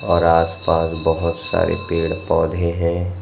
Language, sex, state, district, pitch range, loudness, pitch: Hindi, male, Chhattisgarh, Raipur, 80-85 Hz, -19 LUFS, 85 Hz